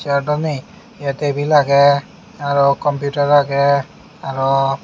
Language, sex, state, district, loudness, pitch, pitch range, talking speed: Chakma, male, Tripura, Unakoti, -16 LUFS, 140 Hz, 140-145 Hz, 125 wpm